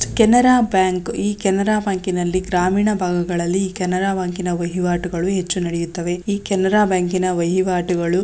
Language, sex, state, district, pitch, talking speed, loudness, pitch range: Kannada, female, Karnataka, Shimoga, 185 Hz, 115 wpm, -19 LUFS, 175-195 Hz